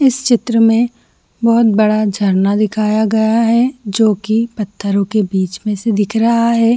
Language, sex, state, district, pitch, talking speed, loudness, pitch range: Hindi, female, Jharkhand, Jamtara, 220 Hz, 170 wpm, -14 LUFS, 205-230 Hz